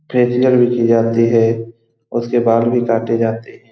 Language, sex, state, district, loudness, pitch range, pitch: Hindi, male, Bihar, Saran, -15 LUFS, 115-120 Hz, 115 Hz